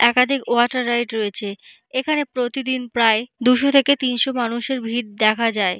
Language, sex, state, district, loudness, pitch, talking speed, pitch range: Bengali, female, West Bengal, Paschim Medinipur, -19 LUFS, 245 Hz, 145 wpm, 230-260 Hz